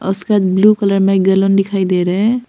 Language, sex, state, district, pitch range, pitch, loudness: Hindi, female, Arunachal Pradesh, Papum Pare, 190-205 Hz, 195 Hz, -13 LUFS